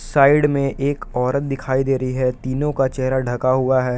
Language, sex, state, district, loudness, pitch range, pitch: Hindi, male, Jharkhand, Palamu, -19 LUFS, 130-140 Hz, 130 Hz